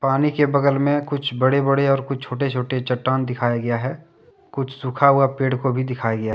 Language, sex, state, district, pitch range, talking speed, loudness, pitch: Hindi, male, Jharkhand, Deoghar, 125-140 Hz, 215 wpm, -20 LUFS, 135 Hz